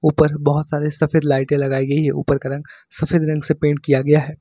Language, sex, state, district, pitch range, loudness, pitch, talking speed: Hindi, male, Uttar Pradesh, Lucknow, 140-155 Hz, -18 LUFS, 150 Hz, 245 wpm